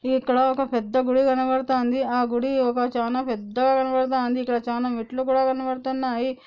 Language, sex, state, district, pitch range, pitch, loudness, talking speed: Telugu, female, Andhra Pradesh, Anantapur, 245-260 Hz, 255 Hz, -23 LUFS, 165 wpm